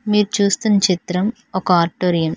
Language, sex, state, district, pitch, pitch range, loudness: Telugu, female, Telangana, Hyderabad, 190 Hz, 180-210 Hz, -17 LUFS